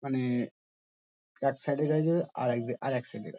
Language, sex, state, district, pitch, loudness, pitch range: Bengali, male, West Bengal, Dakshin Dinajpur, 135 Hz, -31 LUFS, 125-145 Hz